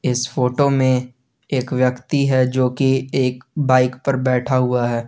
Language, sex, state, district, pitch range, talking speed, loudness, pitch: Hindi, male, Jharkhand, Garhwa, 125-130 Hz, 165 wpm, -18 LUFS, 130 Hz